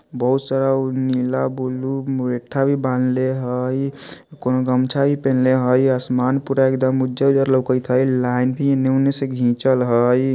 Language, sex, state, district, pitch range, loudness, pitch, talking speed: Bajjika, male, Bihar, Vaishali, 125-135 Hz, -19 LUFS, 130 Hz, 160 wpm